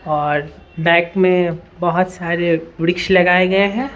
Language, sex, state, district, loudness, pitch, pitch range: Hindi, female, Bihar, Patna, -16 LUFS, 175 Hz, 165-185 Hz